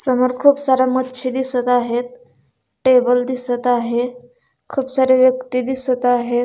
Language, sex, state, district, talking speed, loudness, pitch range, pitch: Marathi, female, Maharashtra, Dhule, 130 wpm, -17 LUFS, 245-260 Hz, 255 Hz